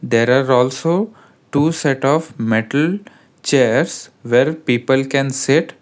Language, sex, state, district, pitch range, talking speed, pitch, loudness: English, male, Karnataka, Bangalore, 130-160 Hz, 125 wpm, 135 Hz, -17 LUFS